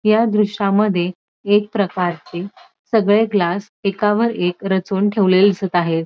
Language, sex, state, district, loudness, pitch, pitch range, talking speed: Marathi, female, Maharashtra, Dhule, -17 LUFS, 200 Hz, 180-210 Hz, 120 wpm